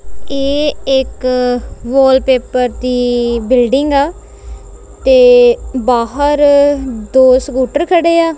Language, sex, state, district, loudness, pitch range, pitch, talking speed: Punjabi, female, Punjab, Kapurthala, -12 LUFS, 250-290 Hz, 265 Hz, 95 wpm